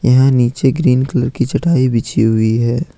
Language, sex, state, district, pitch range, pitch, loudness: Hindi, male, Jharkhand, Ranchi, 120-135 Hz, 130 Hz, -14 LUFS